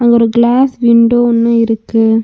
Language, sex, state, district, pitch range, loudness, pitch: Tamil, female, Tamil Nadu, Nilgiris, 230-240 Hz, -10 LUFS, 235 Hz